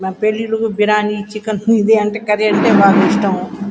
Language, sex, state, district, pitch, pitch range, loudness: Telugu, female, Andhra Pradesh, Guntur, 210 Hz, 200-215 Hz, -14 LUFS